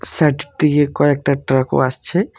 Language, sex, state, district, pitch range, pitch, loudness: Bengali, male, West Bengal, Alipurduar, 135-155 Hz, 145 Hz, -16 LUFS